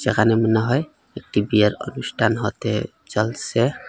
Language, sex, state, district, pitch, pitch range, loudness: Bengali, male, Assam, Hailakandi, 110 Hz, 105-125 Hz, -21 LUFS